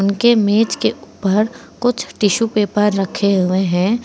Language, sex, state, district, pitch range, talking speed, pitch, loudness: Hindi, female, Uttar Pradesh, Saharanpur, 195-230 Hz, 150 wpm, 210 Hz, -16 LUFS